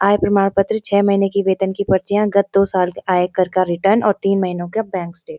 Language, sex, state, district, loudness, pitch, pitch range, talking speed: Hindi, female, Uttarakhand, Uttarkashi, -17 LUFS, 195 Hz, 185-200 Hz, 235 wpm